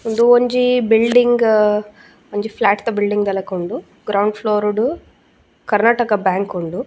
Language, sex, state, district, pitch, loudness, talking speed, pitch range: Tulu, female, Karnataka, Dakshina Kannada, 210 Hz, -16 LUFS, 140 wpm, 205-235 Hz